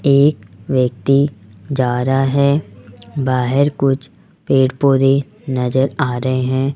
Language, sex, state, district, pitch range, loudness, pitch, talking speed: Hindi, male, Rajasthan, Jaipur, 125-140 Hz, -16 LUFS, 135 Hz, 115 wpm